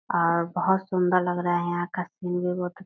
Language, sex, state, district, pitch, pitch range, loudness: Hindi, female, Bihar, Purnia, 180 Hz, 175-180 Hz, -26 LUFS